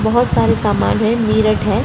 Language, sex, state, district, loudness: Hindi, female, Uttar Pradesh, Etah, -15 LUFS